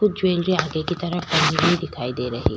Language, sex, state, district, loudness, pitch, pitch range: Hindi, female, Uttar Pradesh, Etah, -21 LUFS, 175 Hz, 155-185 Hz